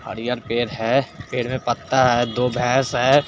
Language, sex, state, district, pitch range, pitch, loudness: Hindi, male, Chandigarh, Chandigarh, 120-130 Hz, 125 Hz, -21 LUFS